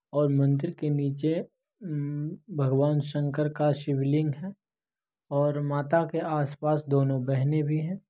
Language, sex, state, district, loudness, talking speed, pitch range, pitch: Maithili, male, Bihar, Begusarai, -28 LUFS, 135 wpm, 145-160 Hz, 150 Hz